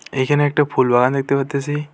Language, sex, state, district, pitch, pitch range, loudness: Bengali, male, West Bengal, Alipurduar, 140 Hz, 130-145 Hz, -18 LUFS